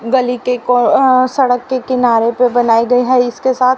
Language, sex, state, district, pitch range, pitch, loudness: Hindi, female, Haryana, Rohtak, 245-255 Hz, 250 Hz, -13 LUFS